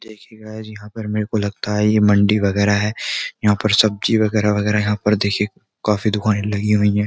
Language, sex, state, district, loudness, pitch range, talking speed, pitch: Hindi, male, Uttar Pradesh, Jyotiba Phule Nagar, -18 LUFS, 105-110 Hz, 210 wpm, 105 Hz